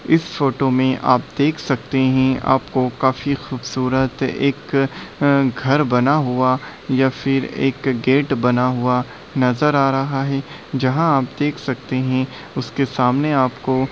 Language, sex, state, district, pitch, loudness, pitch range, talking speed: Hindi, male, Bihar, Bhagalpur, 135 Hz, -19 LUFS, 130-140 Hz, 145 wpm